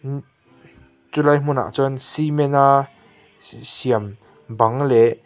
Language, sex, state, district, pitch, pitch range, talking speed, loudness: Mizo, male, Mizoram, Aizawl, 135 Hz, 115-140 Hz, 115 wpm, -19 LUFS